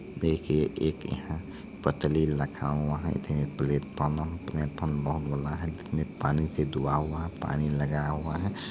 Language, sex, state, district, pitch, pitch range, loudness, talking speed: Maithili, male, Bihar, Supaul, 75 Hz, 70-80 Hz, -30 LUFS, 160 wpm